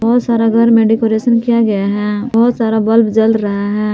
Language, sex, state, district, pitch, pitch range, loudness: Hindi, female, Jharkhand, Palamu, 225 Hz, 210-230 Hz, -12 LUFS